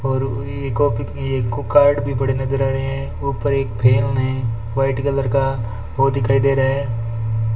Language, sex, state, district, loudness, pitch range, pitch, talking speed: Hindi, male, Rajasthan, Bikaner, -19 LUFS, 115-135 Hz, 130 Hz, 190 wpm